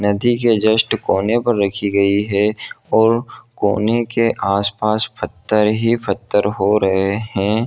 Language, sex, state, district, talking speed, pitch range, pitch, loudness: Hindi, male, Jharkhand, Jamtara, 150 wpm, 100-115 Hz, 105 Hz, -17 LUFS